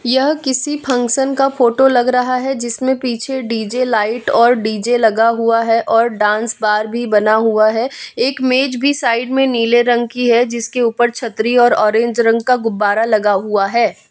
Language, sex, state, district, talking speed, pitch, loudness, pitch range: Hindi, female, Bihar, West Champaran, 185 wpm, 235 Hz, -14 LUFS, 225-255 Hz